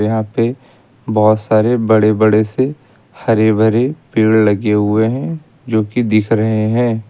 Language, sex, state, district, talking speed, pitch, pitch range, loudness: Hindi, male, Uttar Pradesh, Lucknow, 150 wpm, 110 Hz, 110-120 Hz, -14 LUFS